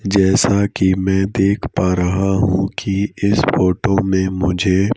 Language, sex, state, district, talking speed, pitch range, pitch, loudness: Hindi, male, Madhya Pradesh, Bhopal, 145 wpm, 95-100 Hz, 95 Hz, -16 LUFS